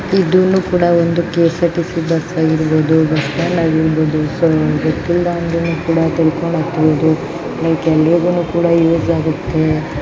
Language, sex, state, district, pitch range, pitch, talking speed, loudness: Kannada, female, Karnataka, Shimoga, 160-170 Hz, 165 Hz, 50 wpm, -15 LUFS